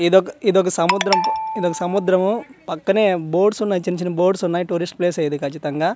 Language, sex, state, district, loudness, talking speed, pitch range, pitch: Telugu, male, Andhra Pradesh, Manyam, -19 LUFS, 180 wpm, 175-200 Hz, 180 Hz